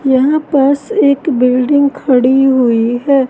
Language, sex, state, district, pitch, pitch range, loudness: Hindi, female, Madhya Pradesh, Katni, 270 Hz, 255-280 Hz, -11 LUFS